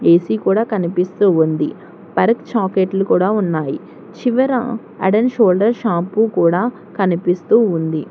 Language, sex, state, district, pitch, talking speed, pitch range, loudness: Telugu, female, Telangana, Hyderabad, 190 Hz, 110 wpm, 170-225 Hz, -16 LUFS